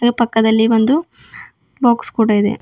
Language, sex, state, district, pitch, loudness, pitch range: Kannada, female, Karnataka, Bidar, 230 Hz, -15 LUFS, 220-240 Hz